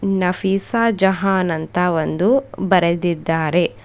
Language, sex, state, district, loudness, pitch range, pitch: Kannada, female, Karnataka, Bidar, -18 LUFS, 175-195 Hz, 185 Hz